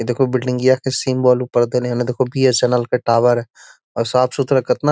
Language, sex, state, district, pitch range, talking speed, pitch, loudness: Magahi, male, Bihar, Gaya, 120-130 Hz, 195 wpm, 125 Hz, -17 LUFS